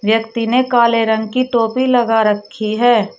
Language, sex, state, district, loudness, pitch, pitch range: Hindi, female, Uttar Pradesh, Shamli, -15 LUFS, 230 Hz, 220-245 Hz